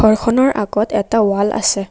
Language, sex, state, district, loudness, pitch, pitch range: Assamese, female, Assam, Kamrup Metropolitan, -15 LUFS, 215 Hz, 205-225 Hz